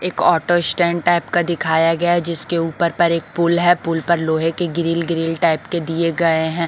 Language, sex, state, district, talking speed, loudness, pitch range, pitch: Hindi, female, Bihar, Patna, 225 wpm, -18 LUFS, 165-175 Hz, 170 Hz